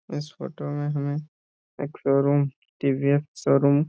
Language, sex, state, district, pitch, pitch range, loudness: Hindi, male, Jharkhand, Jamtara, 140 Hz, 140-145 Hz, -25 LUFS